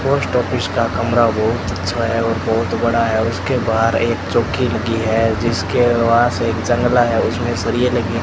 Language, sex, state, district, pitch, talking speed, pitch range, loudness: Hindi, male, Rajasthan, Bikaner, 115 Hz, 190 wpm, 110-120 Hz, -17 LUFS